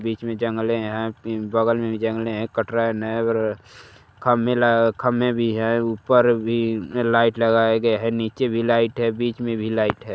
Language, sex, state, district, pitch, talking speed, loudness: Hindi, male, Uttar Pradesh, Gorakhpur, 115 Hz, 170 wpm, -21 LUFS